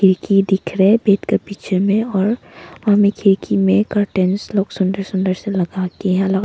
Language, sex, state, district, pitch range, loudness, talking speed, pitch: Hindi, female, Arunachal Pradesh, Papum Pare, 190-205 Hz, -17 LUFS, 195 wpm, 195 Hz